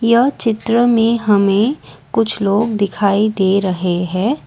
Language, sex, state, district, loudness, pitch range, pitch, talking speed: Hindi, female, Assam, Kamrup Metropolitan, -15 LUFS, 200-230 Hz, 215 Hz, 135 wpm